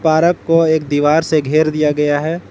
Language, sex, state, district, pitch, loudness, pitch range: Hindi, male, Jharkhand, Palamu, 155 Hz, -14 LUFS, 150-160 Hz